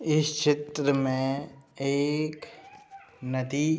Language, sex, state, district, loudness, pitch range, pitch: Hindi, male, Uttar Pradesh, Budaun, -28 LUFS, 135-155 Hz, 150 Hz